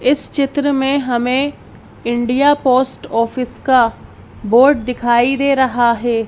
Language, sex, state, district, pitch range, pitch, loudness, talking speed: Hindi, female, Madhya Pradesh, Bhopal, 240-275 Hz, 255 Hz, -15 LUFS, 125 wpm